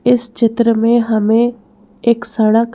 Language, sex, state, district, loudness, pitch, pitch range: Hindi, female, Madhya Pradesh, Bhopal, -14 LUFS, 230 Hz, 225-235 Hz